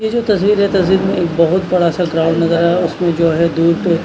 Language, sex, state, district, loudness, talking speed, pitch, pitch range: Hindi, male, Punjab, Kapurthala, -14 LUFS, 295 wpm, 175 Hz, 165-190 Hz